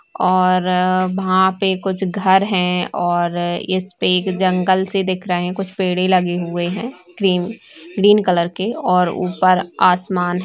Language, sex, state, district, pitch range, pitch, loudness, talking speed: Hindi, female, Bihar, Saran, 180-190 Hz, 185 Hz, -17 LUFS, 160 wpm